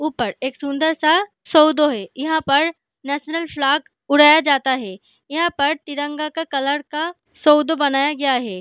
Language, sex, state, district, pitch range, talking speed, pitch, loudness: Hindi, female, Jharkhand, Sahebganj, 275-315 Hz, 160 wpm, 295 Hz, -18 LUFS